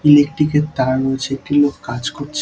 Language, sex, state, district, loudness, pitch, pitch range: Bengali, male, West Bengal, Dakshin Dinajpur, -17 LUFS, 145 Hz, 135-150 Hz